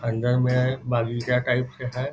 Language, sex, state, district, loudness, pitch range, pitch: Hindi, male, Bihar, Saharsa, -24 LUFS, 120-125 Hz, 125 Hz